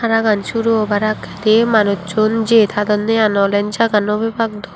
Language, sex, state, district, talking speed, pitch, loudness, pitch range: Chakma, female, Tripura, Unakoti, 165 wpm, 215 Hz, -15 LUFS, 205-225 Hz